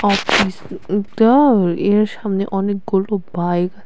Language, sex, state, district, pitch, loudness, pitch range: Bengali, female, Tripura, West Tripura, 200 Hz, -17 LUFS, 190-210 Hz